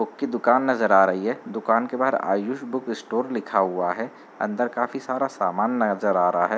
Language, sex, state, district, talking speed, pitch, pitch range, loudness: Hindi, male, Uttar Pradesh, Muzaffarnagar, 220 wpm, 120 Hz, 95-130 Hz, -23 LUFS